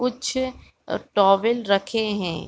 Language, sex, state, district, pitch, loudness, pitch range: Hindi, female, Chhattisgarh, Raigarh, 220 Hz, -22 LUFS, 195-250 Hz